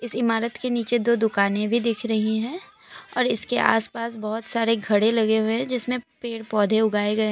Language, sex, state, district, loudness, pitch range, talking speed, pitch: Hindi, female, Assam, Kamrup Metropolitan, -23 LUFS, 220-235 Hz, 195 wpm, 230 Hz